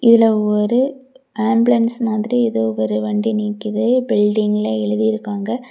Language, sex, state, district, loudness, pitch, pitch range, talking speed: Tamil, female, Tamil Nadu, Kanyakumari, -17 LUFS, 215 Hz, 210-235 Hz, 115 wpm